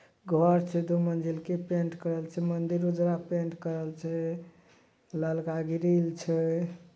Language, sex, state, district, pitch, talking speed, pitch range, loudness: Maithili, male, Bihar, Madhepura, 170 Hz, 140 wpm, 165-175 Hz, -30 LUFS